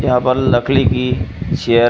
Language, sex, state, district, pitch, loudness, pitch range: Hindi, male, Uttar Pradesh, Ghazipur, 125 Hz, -15 LUFS, 120-130 Hz